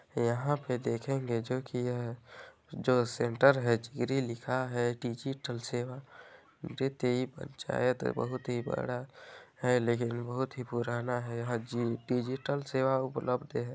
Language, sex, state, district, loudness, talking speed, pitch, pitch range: Hindi, male, Chhattisgarh, Balrampur, -33 LUFS, 130 wpm, 125 Hz, 120-130 Hz